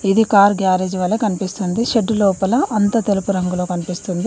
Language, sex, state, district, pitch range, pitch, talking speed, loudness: Telugu, female, Telangana, Mahabubabad, 185-215 Hz, 195 Hz, 155 wpm, -17 LUFS